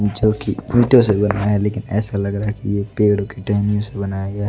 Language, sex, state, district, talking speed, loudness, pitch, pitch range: Hindi, male, Odisha, Nuapada, 265 wpm, -18 LUFS, 105 Hz, 100-105 Hz